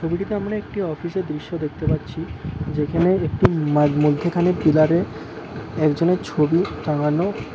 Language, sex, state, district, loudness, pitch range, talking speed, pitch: Bengali, male, West Bengal, Cooch Behar, -21 LUFS, 150-175 Hz, 125 wpm, 160 Hz